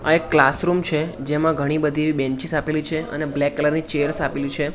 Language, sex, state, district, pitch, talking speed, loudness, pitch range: Gujarati, male, Gujarat, Gandhinagar, 150 Hz, 215 wpm, -21 LUFS, 145-155 Hz